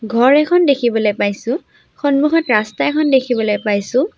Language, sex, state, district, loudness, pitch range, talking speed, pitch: Assamese, female, Assam, Sonitpur, -15 LUFS, 215-290 Hz, 130 wpm, 250 Hz